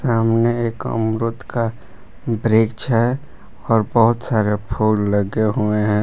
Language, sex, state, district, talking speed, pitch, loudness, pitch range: Hindi, male, Jharkhand, Palamu, 130 wpm, 110 Hz, -19 LUFS, 105-115 Hz